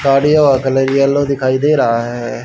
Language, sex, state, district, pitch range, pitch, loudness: Hindi, male, Haryana, Rohtak, 130-140 Hz, 135 Hz, -13 LUFS